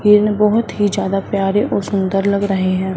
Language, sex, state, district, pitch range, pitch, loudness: Hindi, female, Punjab, Fazilka, 195-210 Hz, 200 Hz, -16 LUFS